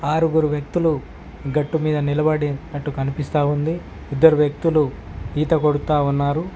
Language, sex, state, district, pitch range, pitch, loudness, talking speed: Telugu, male, Telangana, Mahabubabad, 145-155 Hz, 150 Hz, -20 LUFS, 120 wpm